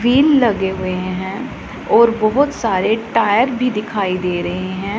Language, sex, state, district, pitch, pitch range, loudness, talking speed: Hindi, female, Punjab, Pathankot, 215 Hz, 185-240 Hz, -16 LUFS, 155 wpm